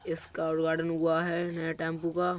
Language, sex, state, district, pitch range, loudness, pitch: Bundeli, male, Uttar Pradesh, Budaun, 160-170 Hz, -30 LUFS, 165 Hz